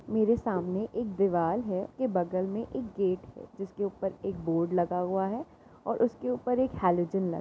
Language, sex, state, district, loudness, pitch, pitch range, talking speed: Hindi, female, Uttar Pradesh, Jyotiba Phule Nagar, -30 LUFS, 195 Hz, 180-230 Hz, 185 wpm